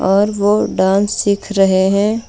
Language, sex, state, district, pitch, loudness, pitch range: Hindi, female, Jharkhand, Deoghar, 200 Hz, -14 LUFS, 195-205 Hz